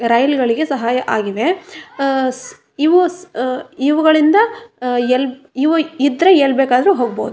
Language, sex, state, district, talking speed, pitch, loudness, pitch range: Kannada, female, Karnataka, Raichur, 115 wpm, 275 Hz, -15 LUFS, 255-330 Hz